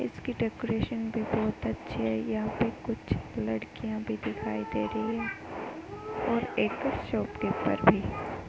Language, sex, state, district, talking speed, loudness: Hindi, female, Uttar Pradesh, Hamirpur, 135 wpm, -31 LUFS